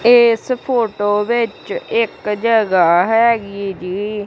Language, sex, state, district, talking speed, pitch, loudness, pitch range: Punjabi, male, Punjab, Kapurthala, 100 wpm, 225 Hz, -16 LUFS, 205-235 Hz